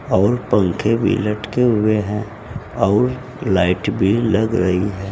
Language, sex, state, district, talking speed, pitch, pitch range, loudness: Hindi, male, Uttar Pradesh, Saharanpur, 140 wpm, 105 Hz, 100-115 Hz, -18 LUFS